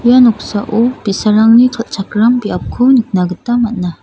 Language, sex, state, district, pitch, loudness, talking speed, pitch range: Garo, female, Meghalaya, South Garo Hills, 225 Hz, -12 LUFS, 120 wpm, 205-240 Hz